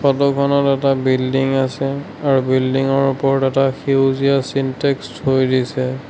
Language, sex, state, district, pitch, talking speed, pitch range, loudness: Assamese, male, Assam, Sonitpur, 135 Hz, 120 wpm, 130-140 Hz, -17 LUFS